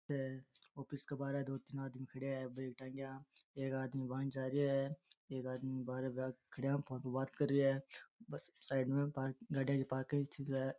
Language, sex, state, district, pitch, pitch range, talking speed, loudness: Rajasthani, male, Rajasthan, Nagaur, 135 Hz, 130-140 Hz, 185 wpm, -41 LUFS